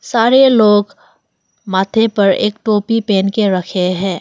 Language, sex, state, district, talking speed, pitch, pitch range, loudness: Hindi, female, Arunachal Pradesh, Longding, 145 wpm, 205 Hz, 195-225 Hz, -13 LUFS